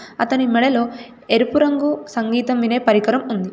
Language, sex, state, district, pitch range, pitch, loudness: Telugu, female, Telangana, Komaram Bheem, 230-260 Hz, 245 Hz, -18 LUFS